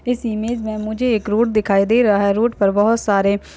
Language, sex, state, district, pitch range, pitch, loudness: Hindi, female, Uttar Pradesh, Budaun, 200-230 Hz, 215 Hz, -17 LUFS